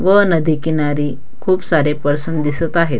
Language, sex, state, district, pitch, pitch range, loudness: Marathi, female, Maharashtra, Dhule, 160 Hz, 150-170 Hz, -17 LUFS